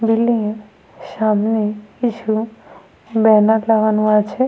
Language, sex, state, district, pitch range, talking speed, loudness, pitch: Bengali, female, Jharkhand, Sahebganj, 215-225 Hz, 95 wpm, -17 LUFS, 220 Hz